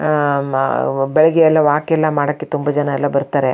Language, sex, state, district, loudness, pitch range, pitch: Kannada, female, Karnataka, Shimoga, -16 LUFS, 140-155 Hz, 145 Hz